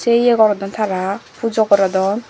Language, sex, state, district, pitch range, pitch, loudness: Chakma, female, Tripura, Dhalai, 195-230 Hz, 210 Hz, -16 LUFS